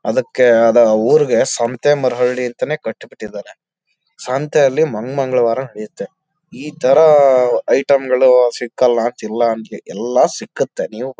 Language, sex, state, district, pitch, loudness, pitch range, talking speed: Kannada, male, Karnataka, Chamarajanagar, 130 Hz, -14 LUFS, 120-155 Hz, 100 wpm